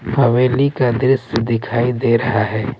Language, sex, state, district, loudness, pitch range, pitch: Hindi, male, Delhi, New Delhi, -16 LUFS, 115-130 Hz, 120 Hz